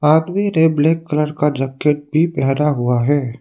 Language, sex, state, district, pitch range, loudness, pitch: Hindi, male, Arunachal Pradesh, Lower Dibang Valley, 135-160 Hz, -17 LUFS, 150 Hz